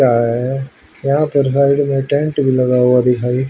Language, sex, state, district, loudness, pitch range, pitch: Hindi, male, Haryana, Charkhi Dadri, -15 LUFS, 125-140 Hz, 135 Hz